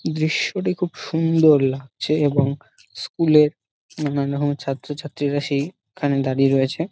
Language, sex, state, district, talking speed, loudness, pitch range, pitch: Bengali, male, West Bengal, Dakshin Dinajpur, 120 wpm, -21 LUFS, 135-155 Hz, 145 Hz